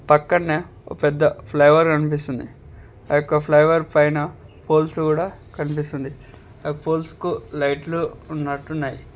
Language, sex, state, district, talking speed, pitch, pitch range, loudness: Telugu, male, Telangana, Hyderabad, 120 wpm, 150 Hz, 145-155 Hz, -20 LUFS